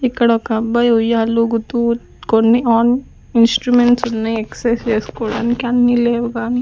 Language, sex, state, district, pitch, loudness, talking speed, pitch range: Telugu, female, Andhra Pradesh, Sri Satya Sai, 235 Hz, -16 LUFS, 120 wpm, 230-240 Hz